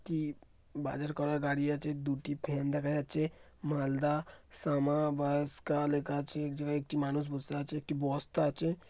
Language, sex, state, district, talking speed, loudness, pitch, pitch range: Bengali, male, West Bengal, Malda, 150 wpm, -34 LUFS, 145 Hz, 145-150 Hz